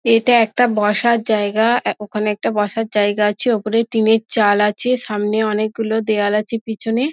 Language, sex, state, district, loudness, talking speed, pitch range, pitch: Bengali, female, West Bengal, Dakshin Dinajpur, -17 LUFS, 175 wpm, 210-230 Hz, 220 Hz